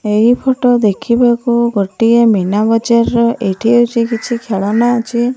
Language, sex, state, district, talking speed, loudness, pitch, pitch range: Odia, female, Odisha, Malkangiri, 135 wpm, -13 LUFS, 235 Hz, 215-240 Hz